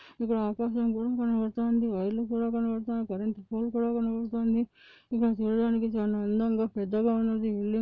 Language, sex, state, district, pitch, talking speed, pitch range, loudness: Telugu, female, Andhra Pradesh, Anantapur, 225 Hz, 155 wpm, 220-230 Hz, -29 LUFS